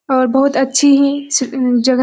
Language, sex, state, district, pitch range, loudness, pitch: Hindi, female, Bihar, Kishanganj, 255-280 Hz, -13 LUFS, 265 Hz